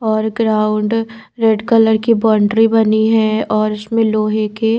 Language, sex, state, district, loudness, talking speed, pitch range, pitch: Hindi, female, Bihar, Patna, -14 LUFS, 150 wpm, 215-225 Hz, 220 Hz